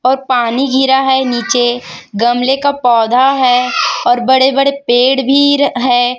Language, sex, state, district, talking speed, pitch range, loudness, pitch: Hindi, female, Chhattisgarh, Raipur, 155 wpm, 245-270 Hz, -11 LUFS, 255 Hz